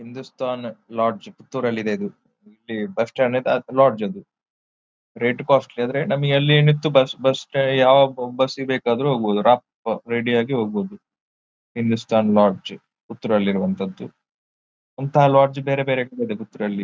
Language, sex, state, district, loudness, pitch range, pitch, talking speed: Kannada, male, Karnataka, Dakshina Kannada, -20 LUFS, 110-135 Hz, 125 Hz, 145 wpm